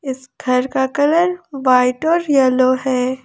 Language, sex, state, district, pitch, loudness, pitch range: Hindi, female, Jharkhand, Ranchi, 265 Hz, -16 LUFS, 255-290 Hz